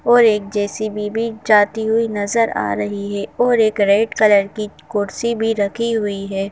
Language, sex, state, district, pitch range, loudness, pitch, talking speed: Hindi, female, Madhya Pradesh, Bhopal, 200-225 Hz, -17 LUFS, 210 Hz, 185 wpm